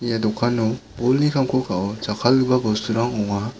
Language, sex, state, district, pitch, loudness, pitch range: Garo, male, Meghalaya, West Garo Hills, 115 Hz, -21 LUFS, 105-125 Hz